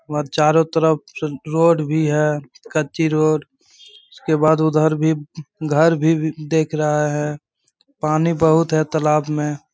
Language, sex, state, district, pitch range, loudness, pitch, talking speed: Hindi, male, Jharkhand, Sahebganj, 150-160 Hz, -18 LUFS, 155 Hz, 150 wpm